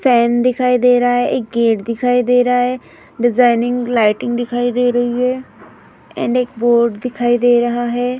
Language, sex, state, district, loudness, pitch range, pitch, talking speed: Hindi, female, Bihar, Vaishali, -15 LUFS, 240-250 Hz, 245 Hz, 185 wpm